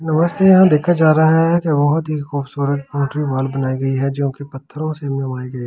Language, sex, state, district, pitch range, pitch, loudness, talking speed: Hindi, male, Delhi, New Delhi, 135-160 Hz, 145 Hz, -16 LUFS, 235 wpm